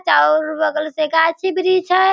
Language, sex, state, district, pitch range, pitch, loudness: Hindi, female, Bihar, Sitamarhi, 310-370 Hz, 325 Hz, -16 LUFS